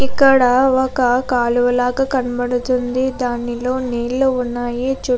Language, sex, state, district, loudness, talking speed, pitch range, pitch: Telugu, female, Andhra Pradesh, Krishna, -17 LUFS, 105 wpm, 245-260 Hz, 250 Hz